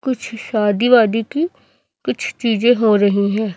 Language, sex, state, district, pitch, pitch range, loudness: Hindi, female, Chhattisgarh, Raipur, 225 Hz, 210-245 Hz, -16 LUFS